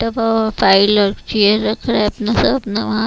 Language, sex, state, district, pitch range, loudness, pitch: Hindi, female, Chhattisgarh, Raipur, 210-225 Hz, -15 LUFS, 215 Hz